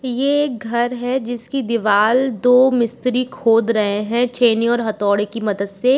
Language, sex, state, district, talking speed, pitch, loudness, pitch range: Hindi, female, Uttar Pradesh, Jalaun, 170 wpm, 240 Hz, -17 LUFS, 225-250 Hz